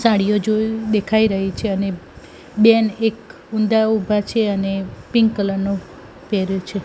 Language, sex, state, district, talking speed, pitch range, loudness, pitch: Gujarati, female, Gujarat, Gandhinagar, 150 wpm, 195-220 Hz, -19 LUFS, 215 Hz